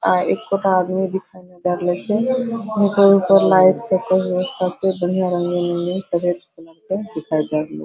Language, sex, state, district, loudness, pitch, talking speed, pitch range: Hindi, female, Bihar, Araria, -18 LUFS, 185 Hz, 175 wpm, 175-195 Hz